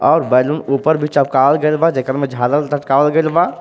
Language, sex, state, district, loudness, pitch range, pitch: Bhojpuri, male, Jharkhand, Palamu, -15 LUFS, 135-155 Hz, 145 Hz